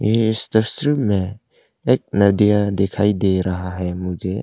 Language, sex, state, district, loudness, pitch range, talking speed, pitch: Hindi, male, Arunachal Pradesh, Longding, -19 LUFS, 95-110 Hz, 150 wpm, 100 Hz